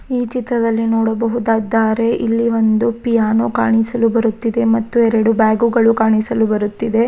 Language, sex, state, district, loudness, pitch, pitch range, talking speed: Kannada, female, Karnataka, Raichur, -15 LUFS, 225 Hz, 220-230 Hz, 120 wpm